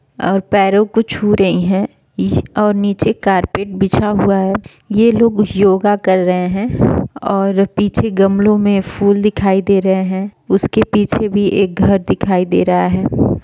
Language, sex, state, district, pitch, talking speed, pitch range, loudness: Hindi, female, Jharkhand, Sahebganj, 195 Hz, 145 wpm, 190-205 Hz, -14 LUFS